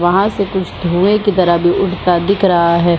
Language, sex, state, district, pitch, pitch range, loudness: Hindi, female, Bihar, Supaul, 180 Hz, 175-195 Hz, -14 LUFS